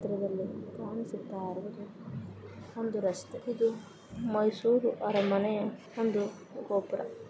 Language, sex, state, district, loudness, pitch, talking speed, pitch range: Kannada, female, Karnataka, Mysore, -33 LUFS, 210 Hz, 75 wpm, 195-225 Hz